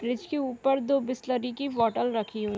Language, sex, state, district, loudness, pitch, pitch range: Hindi, female, Bihar, Sitamarhi, -28 LUFS, 250 Hz, 230-270 Hz